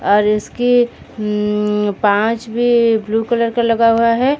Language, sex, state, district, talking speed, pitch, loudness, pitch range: Hindi, female, Odisha, Sambalpur, 150 wpm, 230 Hz, -15 LUFS, 210-235 Hz